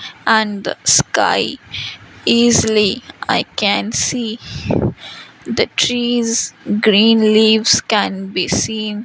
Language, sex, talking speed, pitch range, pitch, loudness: English, female, 95 wpm, 210-235 Hz, 220 Hz, -15 LUFS